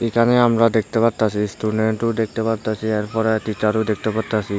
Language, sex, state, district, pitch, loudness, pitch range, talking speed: Bengali, male, Tripura, Unakoti, 110 Hz, -19 LUFS, 110-115 Hz, 145 wpm